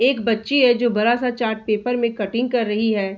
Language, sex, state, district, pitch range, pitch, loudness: Hindi, female, Bihar, Araria, 215-245 Hz, 230 Hz, -20 LUFS